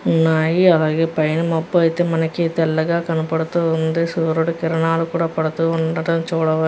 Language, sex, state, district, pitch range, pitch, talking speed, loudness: Telugu, female, Andhra Pradesh, Guntur, 160-165 Hz, 165 Hz, 145 wpm, -18 LUFS